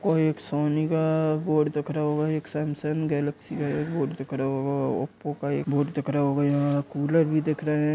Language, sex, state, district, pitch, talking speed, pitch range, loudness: Hindi, female, Uttar Pradesh, Jalaun, 150 Hz, 225 wpm, 145-155 Hz, -26 LUFS